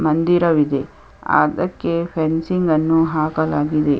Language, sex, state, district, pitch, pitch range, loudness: Kannada, female, Karnataka, Chamarajanagar, 160 Hz, 155-165 Hz, -18 LUFS